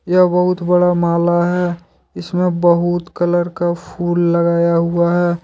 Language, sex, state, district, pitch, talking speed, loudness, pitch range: Hindi, male, Jharkhand, Deoghar, 175 Hz, 145 wpm, -16 LUFS, 170-180 Hz